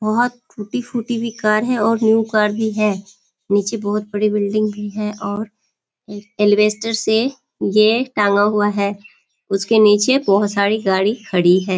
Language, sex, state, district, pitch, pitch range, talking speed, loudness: Hindi, female, Bihar, Kishanganj, 210 Hz, 205-220 Hz, 155 wpm, -17 LUFS